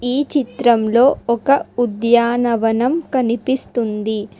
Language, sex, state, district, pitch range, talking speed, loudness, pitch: Telugu, female, Telangana, Hyderabad, 230-260 Hz, 70 wpm, -17 LUFS, 240 Hz